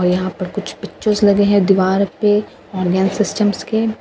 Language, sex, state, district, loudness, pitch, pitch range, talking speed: Hindi, female, Bihar, Katihar, -16 LUFS, 200 Hz, 185-210 Hz, 225 wpm